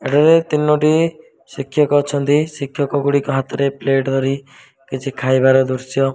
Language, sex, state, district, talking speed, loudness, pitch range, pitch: Odia, male, Odisha, Malkangiri, 125 wpm, -17 LUFS, 135-150 Hz, 140 Hz